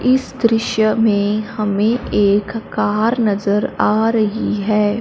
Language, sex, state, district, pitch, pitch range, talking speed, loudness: Hindi, female, Punjab, Fazilka, 215 Hz, 205-225 Hz, 120 wpm, -17 LUFS